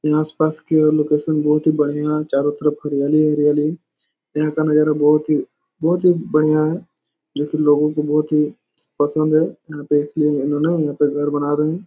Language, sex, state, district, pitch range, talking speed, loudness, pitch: Hindi, male, Bihar, Jahanabad, 150-155 Hz, 190 wpm, -18 LUFS, 150 Hz